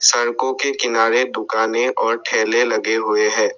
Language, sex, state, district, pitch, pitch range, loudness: Hindi, male, Assam, Sonitpur, 120 Hz, 110-130 Hz, -18 LUFS